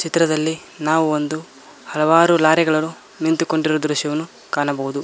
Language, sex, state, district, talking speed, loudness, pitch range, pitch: Kannada, male, Karnataka, Koppal, 105 wpm, -18 LUFS, 150-160 Hz, 155 Hz